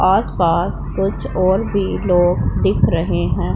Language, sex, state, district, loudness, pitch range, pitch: Hindi, female, Punjab, Pathankot, -17 LUFS, 175-195 Hz, 190 Hz